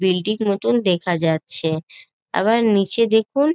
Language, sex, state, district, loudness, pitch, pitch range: Bengali, female, West Bengal, North 24 Parganas, -19 LUFS, 200 Hz, 175-225 Hz